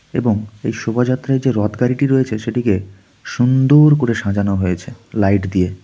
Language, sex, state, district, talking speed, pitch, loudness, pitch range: Bengali, male, West Bengal, Darjeeling, 155 wpm, 115 Hz, -16 LUFS, 100-130 Hz